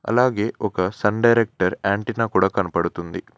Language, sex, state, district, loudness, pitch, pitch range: Telugu, male, Telangana, Mahabubabad, -21 LUFS, 105 Hz, 90-115 Hz